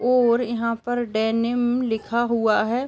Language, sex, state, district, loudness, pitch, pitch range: Hindi, female, Uttar Pradesh, Varanasi, -22 LUFS, 235 Hz, 230-245 Hz